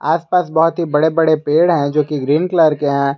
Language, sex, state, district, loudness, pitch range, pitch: Hindi, male, Jharkhand, Garhwa, -15 LUFS, 145-165 Hz, 155 Hz